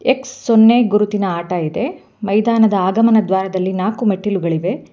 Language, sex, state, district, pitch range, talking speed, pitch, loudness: Kannada, female, Karnataka, Bangalore, 185-225 Hz, 120 wpm, 205 Hz, -16 LUFS